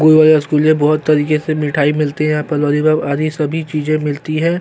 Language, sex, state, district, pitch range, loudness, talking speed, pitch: Hindi, male, Chhattisgarh, Korba, 150-155 Hz, -15 LUFS, 210 wpm, 155 Hz